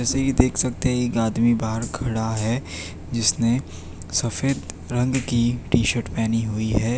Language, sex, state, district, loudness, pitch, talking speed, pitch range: Hindi, male, Gujarat, Valsad, -23 LUFS, 115 Hz, 155 wpm, 110-125 Hz